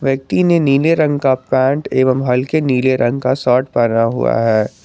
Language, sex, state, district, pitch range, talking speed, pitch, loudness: Hindi, male, Jharkhand, Garhwa, 125-140 Hz, 185 wpm, 130 Hz, -15 LUFS